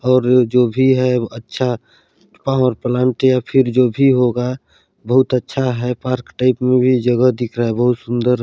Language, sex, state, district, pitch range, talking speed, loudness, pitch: Hindi, male, Chhattisgarh, Balrampur, 120-130 Hz, 170 wpm, -16 LUFS, 125 Hz